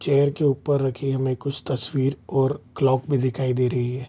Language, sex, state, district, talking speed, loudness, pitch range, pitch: Hindi, male, Bihar, Vaishali, 220 wpm, -23 LUFS, 130-140 Hz, 135 Hz